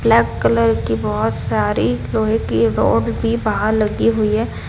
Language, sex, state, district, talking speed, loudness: Hindi, female, Odisha, Sambalpur, 165 wpm, -17 LUFS